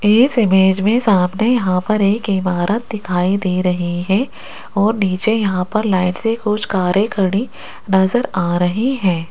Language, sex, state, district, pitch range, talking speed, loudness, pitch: Hindi, female, Rajasthan, Jaipur, 185-215 Hz, 160 wpm, -16 LUFS, 195 Hz